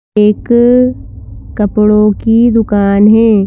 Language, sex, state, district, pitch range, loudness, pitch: Hindi, female, Madhya Pradesh, Bhopal, 210-235 Hz, -9 LUFS, 210 Hz